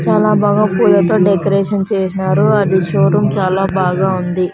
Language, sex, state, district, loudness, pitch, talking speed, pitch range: Telugu, female, Andhra Pradesh, Sri Satya Sai, -13 LUFS, 190 Hz, 130 wpm, 185-200 Hz